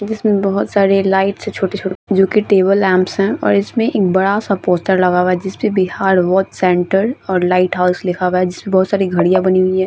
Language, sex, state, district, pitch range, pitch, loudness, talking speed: Hindi, female, Bihar, Vaishali, 185-200 Hz, 190 Hz, -15 LUFS, 230 wpm